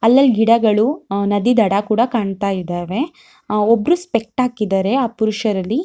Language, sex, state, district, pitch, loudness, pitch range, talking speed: Kannada, female, Karnataka, Shimoga, 220 Hz, -17 LUFS, 205-245 Hz, 135 wpm